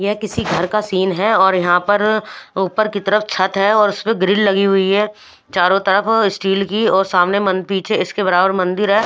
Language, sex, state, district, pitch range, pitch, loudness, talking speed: Hindi, female, Punjab, Fazilka, 190-210 Hz, 195 Hz, -16 LUFS, 210 wpm